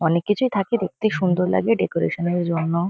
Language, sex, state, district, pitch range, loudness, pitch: Bengali, female, West Bengal, Kolkata, 170-215 Hz, -21 LUFS, 180 Hz